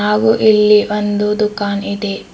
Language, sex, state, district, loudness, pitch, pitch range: Kannada, female, Karnataka, Bidar, -14 LUFS, 210 Hz, 205-210 Hz